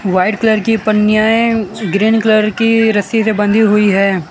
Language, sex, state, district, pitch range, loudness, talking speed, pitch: Hindi, male, Gujarat, Valsad, 205-225 Hz, -12 LUFS, 180 wpm, 215 Hz